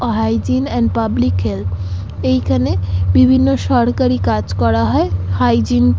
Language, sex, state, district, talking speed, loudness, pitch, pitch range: Bengali, female, West Bengal, Kolkata, 130 wpm, -15 LUFS, 90 Hz, 85-110 Hz